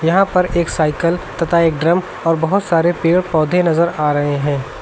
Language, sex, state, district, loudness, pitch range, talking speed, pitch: Hindi, male, Uttar Pradesh, Lucknow, -16 LUFS, 160-175 Hz, 200 wpm, 165 Hz